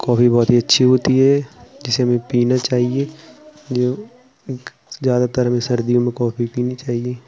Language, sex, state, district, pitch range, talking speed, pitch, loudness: Hindi, male, Uttar Pradesh, Jalaun, 120-135 Hz, 150 wpm, 125 Hz, -17 LUFS